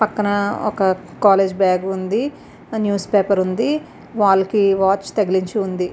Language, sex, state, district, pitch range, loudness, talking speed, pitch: Telugu, female, Andhra Pradesh, Visakhapatnam, 190-210 Hz, -18 LUFS, 130 wpm, 200 Hz